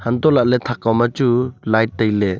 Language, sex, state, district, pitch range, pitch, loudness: Wancho, male, Arunachal Pradesh, Longding, 110-125 Hz, 120 Hz, -17 LUFS